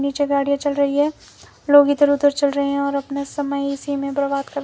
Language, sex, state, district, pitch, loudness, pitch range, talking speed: Hindi, female, Himachal Pradesh, Shimla, 280 Hz, -19 LUFS, 280-285 Hz, 235 wpm